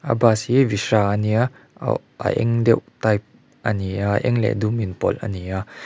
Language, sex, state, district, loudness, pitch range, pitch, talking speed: Mizo, male, Mizoram, Aizawl, -21 LUFS, 100-115 Hz, 110 Hz, 205 wpm